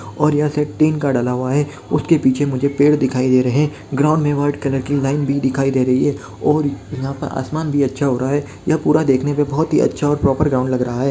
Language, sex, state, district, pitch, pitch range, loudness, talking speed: Hindi, male, Jharkhand, Jamtara, 140 Hz, 130-150 Hz, -17 LUFS, 265 wpm